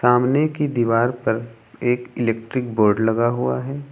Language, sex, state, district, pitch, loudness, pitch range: Hindi, male, Uttar Pradesh, Lucknow, 120 Hz, -20 LUFS, 115-125 Hz